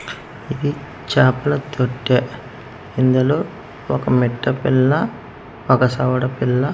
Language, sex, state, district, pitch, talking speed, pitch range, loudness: Telugu, male, Andhra Pradesh, Manyam, 130 Hz, 100 wpm, 125-140 Hz, -18 LUFS